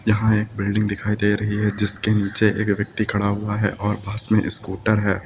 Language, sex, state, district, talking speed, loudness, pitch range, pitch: Hindi, male, Uttar Pradesh, Lucknow, 215 wpm, -19 LUFS, 100-105 Hz, 105 Hz